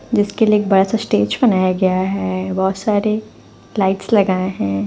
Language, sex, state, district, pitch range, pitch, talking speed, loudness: Hindi, female, Punjab, Fazilka, 185-210 Hz, 195 Hz, 160 wpm, -17 LUFS